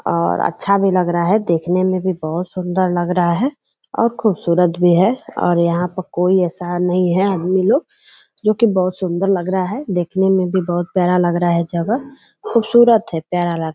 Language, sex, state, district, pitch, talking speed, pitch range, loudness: Hindi, female, Bihar, Purnia, 185 Hz, 210 wpm, 175-195 Hz, -17 LUFS